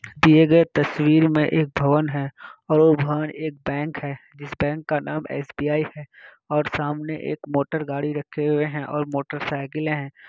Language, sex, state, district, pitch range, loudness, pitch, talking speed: Hindi, male, Bihar, Kishanganj, 145-155 Hz, -22 LUFS, 150 Hz, 170 wpm